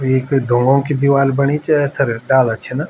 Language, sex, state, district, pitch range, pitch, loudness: Garhwali, male, Uttarakhand, Tehri Garhwal, 130-140 Hz, 135 Hz, -15 LUFS